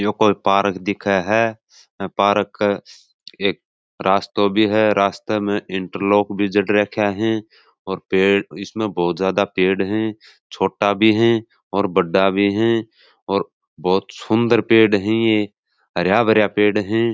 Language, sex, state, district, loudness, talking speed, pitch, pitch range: Marwari, male, Rajasthan, Churu, -18 LUFS, 140 wpm, 100 Hz, 100-110 Hz